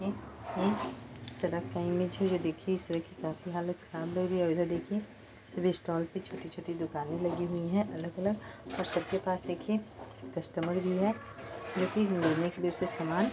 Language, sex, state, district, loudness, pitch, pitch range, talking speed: Hindi, female, Bihar, Purnia, -34 LUFS, 175 Hz, 165-185 Hz, 155 wpm